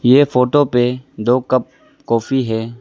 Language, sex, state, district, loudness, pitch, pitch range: Hindi, male, Arunachal Pradesh, Lower Dibang Valley, -16 LUFS, 125 Hz, 120-130 Hz